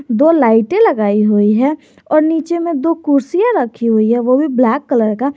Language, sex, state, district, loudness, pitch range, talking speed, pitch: Hindi, male, Jharkhand, Garhwa, -13 LUFS, 230-320 Hz, 200 wpm, 275 Hz